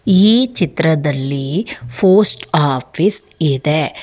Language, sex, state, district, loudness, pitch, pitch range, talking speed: Kannada, female, Karnataka, Bangalore, -15 LUFS, 160 Hz, 140-195 Hz, 75 wpm